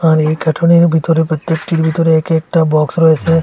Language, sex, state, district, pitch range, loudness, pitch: Bengali, male, Assam, Hailakandi, 160-165 Hz, -12 LUFS, 160 Hz